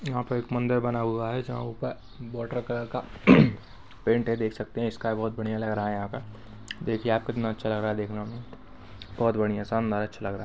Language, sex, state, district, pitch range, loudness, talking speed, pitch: Hindi, female, Maharashtra, Dhule, 105-120 Hz, -28 LUFS, 225 wpm, 115 Hz